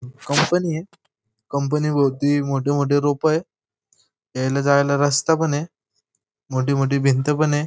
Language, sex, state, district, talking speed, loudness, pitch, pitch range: Marathi, male, Maharashtra, Pune, 135 wpm, -20 LUFS, 145 Hz, 140-150 Hz